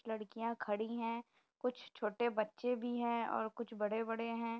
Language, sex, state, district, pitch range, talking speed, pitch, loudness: Hindi, female, Uttar Pradesh, Jyotiba Phule Nagar, 220-235 Hz, 155 wpm, 230 Hz, -40 LUFS